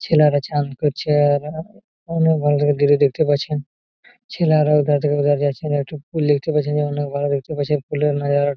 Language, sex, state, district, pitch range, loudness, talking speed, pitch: Bengali, male, West Bengal, Malda, 145-150 Hz, -19 LUFS, 155 wpm, 145 Hz